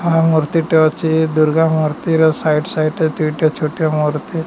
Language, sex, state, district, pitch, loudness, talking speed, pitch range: Odia, male, Odisha, Nuapada, 160 Hz, -15 LUFS, 135 wpm, 155-160 Hz